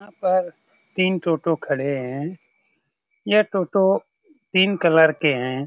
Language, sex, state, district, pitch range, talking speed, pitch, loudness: Hindi, male, Bihar, Saran, 150-195 Hz, 125 wpm, 180 Hz, -20 LUFS